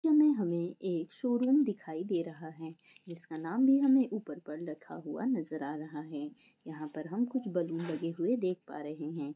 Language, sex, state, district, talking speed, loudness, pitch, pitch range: Hindi, female, Goa, North and South Goa, 185 wpm, -33 LUFS, 170 Hz, 155-220 Hz